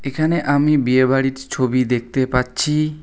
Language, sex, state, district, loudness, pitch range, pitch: Bengali, male, West Bengal, Alipurduar, -18 LUFS, 130-150 Hz, 135 Hz